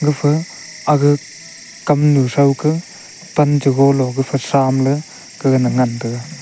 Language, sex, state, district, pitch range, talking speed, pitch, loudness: Wancho, male, Arunachal Pradesh, Longding, 135-155 Hz, 120 wpm, 145 Hz, -16 LUFS